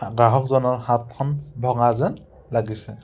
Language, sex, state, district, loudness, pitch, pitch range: Assamese, male, Assam, Sonitpur, -22 LUFS, 120 Hz, 115-135 Hz